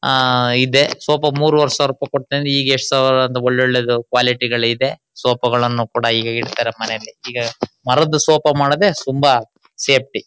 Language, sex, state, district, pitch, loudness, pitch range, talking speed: Kannada, male, Karnataka, Shimoga, 130 Hz, -16 LUFS, 120-140 Hz, 175 wpm